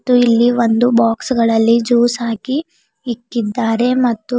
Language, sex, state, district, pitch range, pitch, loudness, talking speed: Kannada, female, Karnataka, Bidar, 230-245 Hz, 240 Hz, -15 LUFS, 125 wpm